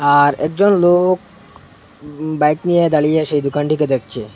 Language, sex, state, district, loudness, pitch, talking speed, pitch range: Bengali, male, Assam, Hailakandi, -15 LUFS, 150 Hz, 140 wpm, 145-175 Hz